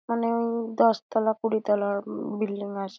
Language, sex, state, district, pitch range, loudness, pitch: Bengali, female, West Bengal, Dakshin Dinajpur, 205-230 Hz, -26 LUFS, 220 Hz